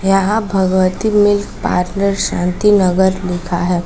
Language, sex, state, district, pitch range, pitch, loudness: Hindi, female, Bihar, West Champaran, 180-205 Hz, 190 Hz, -15 LUFS